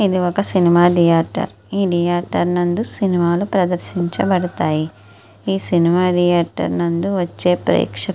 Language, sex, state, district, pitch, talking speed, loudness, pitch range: Telugu, female, Andhra Pradesh, Srikakulam, 175 Hz, 125 wpm, -17 LUFS, 170-180 Hz